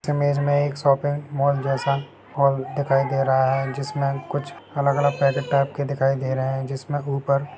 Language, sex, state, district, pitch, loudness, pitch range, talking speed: Hindi, male, Bihar, Sitamarhi, 140 Hz, -23 LUFS, 135-145 Hz, 180 wpm